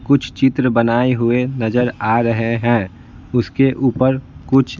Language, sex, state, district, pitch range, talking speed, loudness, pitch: Hindi, male, Bihar, Patna, 115-130 Hz, 135 wpm, -17 LUFS, 120 Hz